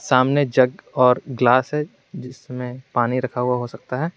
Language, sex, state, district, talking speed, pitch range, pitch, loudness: Hindi, male, Jharkhand, Garhwa, 170 wpm, 125-130 Hz, 125 Hz, -20 LUFS